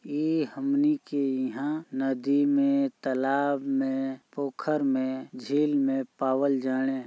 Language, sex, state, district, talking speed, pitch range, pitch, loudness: Bhojpuri, male, Uttar Pradesh, Gorakhpur, 125 wpm, 135-150 Hz, 140 Hz, -27 LUFS